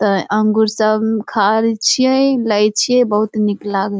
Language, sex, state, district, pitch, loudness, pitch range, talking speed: Maithili, female, Bihar, Samastipur, 215 Hz, -15 LUFS, 210-225 Hz, 165 wpm